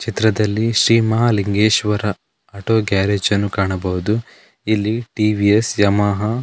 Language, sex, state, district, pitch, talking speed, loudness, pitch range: Kannada, male, Karnataka, Dakshina Kannada, 105 Hz, 105 wpm, -17 LUFS, 100-110 Hz